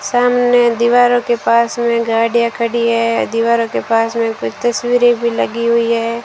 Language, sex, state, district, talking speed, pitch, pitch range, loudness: Hindi, female, Rajasthan, Bikaner, 175 wpm, 235 Hz, 230-240 Hz, -14 LUFS